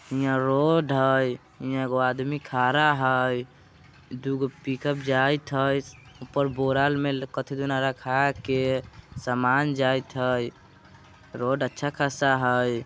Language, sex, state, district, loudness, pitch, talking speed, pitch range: Bajjika, male, Bihar, Vaishali, -25 LUFS, 135 Hz, 125 wpm, 125-140 Hz